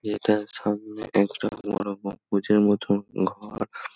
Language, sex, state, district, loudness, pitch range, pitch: Bengali, male, West Bengal, Malda, -26 LUFS, 100-105 Hz, 105 Hz